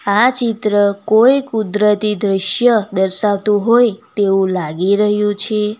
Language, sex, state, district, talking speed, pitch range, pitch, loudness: Gujarati, female, Gujarat, Valsad, 115 wpm, 200-220 Hz, 210 Hz, -14 LUFS